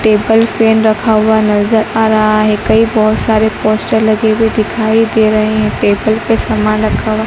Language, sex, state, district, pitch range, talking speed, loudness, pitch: Hindi, female, Madhya Pradesh, Dhar, 215-220 Hz, 200 wpm, -11 LUFS, 220 Hz